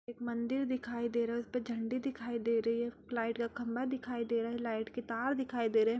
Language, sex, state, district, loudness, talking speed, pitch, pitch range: Hindi, female, Bihar, Purnia, -36 LUFS, 250 wpm, 235 Hz, 230-245 Hz